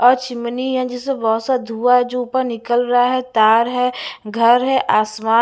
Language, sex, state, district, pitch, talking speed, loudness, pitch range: Hindi, female, Bihar, West Champaran, 245 Hz, 200 wpm, -17 LUFS, 230-255 Hz